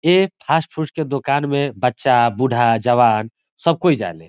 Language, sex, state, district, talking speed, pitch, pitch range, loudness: Bhojpuri, male, Bihar, Saran, 170 wpm, 140 Hz, 120-160 Hz, -18 LUFS